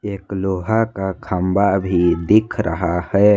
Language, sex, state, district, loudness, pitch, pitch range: Hindi, male, Jharkhand, Ranchi, -18 LUFS, 95 Hz, 90-105 Hz